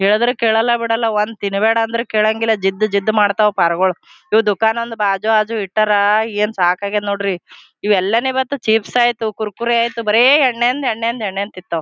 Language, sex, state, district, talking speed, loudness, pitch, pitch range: Kannada, female, Karnataka, Gulbarga, 160 wpm, -16 LUFS, 215 Hz, 205-230 Hz